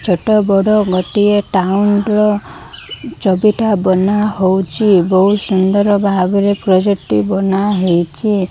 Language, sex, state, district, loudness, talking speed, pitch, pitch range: Odia, female, Odisha, Malkangiri, -13 LUFS, 85 wpm, 200 Hz, 185-205 Hz